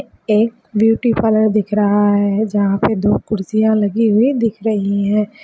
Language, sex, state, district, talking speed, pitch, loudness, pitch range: Hindi, female, Chhattisgarh, Sukma, 165 wpm, 215 Hz, -15 LUFS, 205-220 Hz